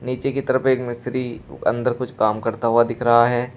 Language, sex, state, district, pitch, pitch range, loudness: Hindi, male, Uttar Pradesh, Shamli, 120 Hz, 120-125 Hz, -20 LUFS